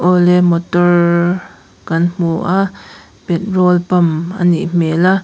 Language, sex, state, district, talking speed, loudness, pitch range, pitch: Mizo, female, Mizoram, Aizawl, 125 wpm, -14 LUFS, 170-180 Hz, 175 Hz